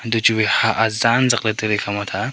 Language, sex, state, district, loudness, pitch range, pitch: Wancho, male, Arunachal Pradesh, Longding, -18 LUFS, 110-115 Hz, 110 Hz